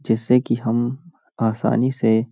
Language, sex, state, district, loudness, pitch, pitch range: Hindi, male, Uttar Pradesh, Hamirpur, -20 LUFS, 120 Hz, 115-125 Hz